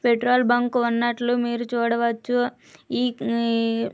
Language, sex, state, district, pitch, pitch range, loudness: Telugu, female, Andhra Pradesh, Krishna, 240 Hz, 235-245 Hz, -23 LUFS